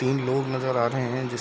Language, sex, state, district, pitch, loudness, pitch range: Hindi, male, Bihar, Darbhanga, 130 Hz, -26 LUFS, 125-130 Hz